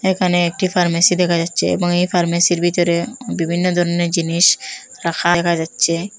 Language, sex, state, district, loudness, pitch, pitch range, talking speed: Bengali, female, Assam, Hailakandi, -16 LUFS, 175 Hz, 170-180 Hz, 145 wpm